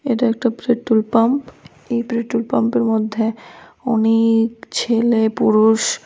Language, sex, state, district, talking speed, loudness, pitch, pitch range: Bengali, female, Tripura, West Tripura, 110 wpm, -17 LUFS, 230 Hz, 225-240 Hz